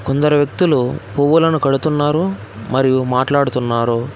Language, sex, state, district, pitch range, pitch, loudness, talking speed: Telugu, male, Telangana, Hyderabad, 125-150 Hz, 135 Hz, -16 LUFS, 85 wpm